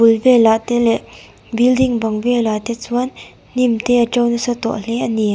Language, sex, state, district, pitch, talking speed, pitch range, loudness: Mizo, female, Mizoram, Aizawl, 235 Hz, 200 wpm, 225-245 Hz, -16 LUFS